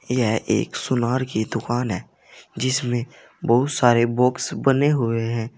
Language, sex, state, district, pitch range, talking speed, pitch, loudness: Hindi, male, Uttar Pradesh, Saharanpur, 115-130 Hz, 140 wpm, 120 Hz, -21 LUFS